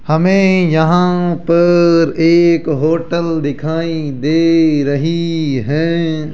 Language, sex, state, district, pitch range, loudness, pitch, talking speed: Hindi, male, Rajasthan, Jaipur, 155-170 Hz, -13 LUFS, 165 Hz, 85 wpm